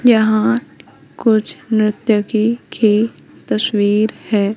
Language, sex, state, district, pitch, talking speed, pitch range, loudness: Hindi, female, Madhya Pradesh, Katni, 215 Hz, 80 wpm, 210-230 Hz, -16 LUFS